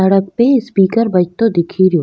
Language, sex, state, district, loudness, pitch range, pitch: Rajasthani, female, Rajasthan, Nagaur, -13 LUFS, 180-230 Hz, 195 Hz